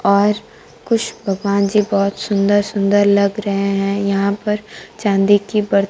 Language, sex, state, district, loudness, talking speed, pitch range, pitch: Hindi, female, Bihar, Kaimur, -17 LUFS, 150 wpm, 200-210 Hz, 200 Hz